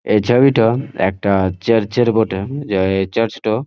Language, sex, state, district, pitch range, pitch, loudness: Bengali, male, West Bengal, Jhargram, 95-120 Hz, 110 Hz, -16 LUFS